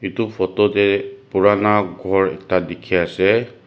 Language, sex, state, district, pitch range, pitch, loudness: Nagamese, male, Nagaland, Dimapur, 95-105 Hz, 100 Hz, -18 LUFS